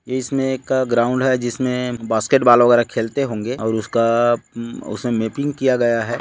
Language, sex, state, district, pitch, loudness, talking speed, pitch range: Hindi, male, Chhattisgarh, Bilaspur, 120 Hz, -18 LUFS, 165 wpm, 115-130 Hz